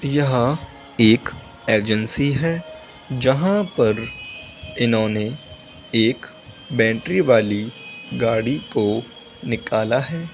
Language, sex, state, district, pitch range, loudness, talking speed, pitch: Hindi, male, Uttar Pradesh, Hamirpur, 110-140 Hz, -20 LUFS, 80 wpm, 120 Hz